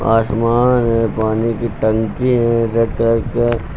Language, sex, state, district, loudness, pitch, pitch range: Hindi, male, Uttar Pradesh, Lucknow, -16 LUFS, 115 Hz, 110-120 Hz